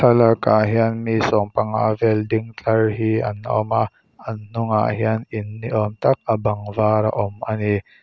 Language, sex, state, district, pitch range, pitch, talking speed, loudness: Mizo, male, Mizoram, Aizawl, 105-115 Hz, 110 Hz, 180 wpm, -20 LUFS